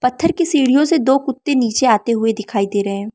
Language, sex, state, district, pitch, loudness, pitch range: Hindi, female, Arunachal Pradesh, Lower Dibang Valley, 250 Hz, -16 LUFS, 215-280 Hz